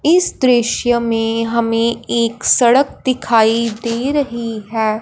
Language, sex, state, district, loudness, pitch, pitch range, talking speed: Hindi, female, Punjab, Fazilka, -15 LUFS, 235 Hz, 225-245 Hz, 120 wpm